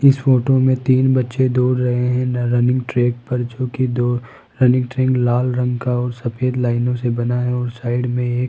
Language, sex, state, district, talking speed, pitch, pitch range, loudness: Hindi, male, Rajasthan, Jaipur, 210 wpm, 125 Hz, 120-130 Hz, -18 LUFS